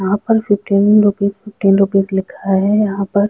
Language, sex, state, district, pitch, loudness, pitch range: Hindi, female, Chhattisgarh, Korba, 200 Hz, -15 LUFS, 195-210 Hz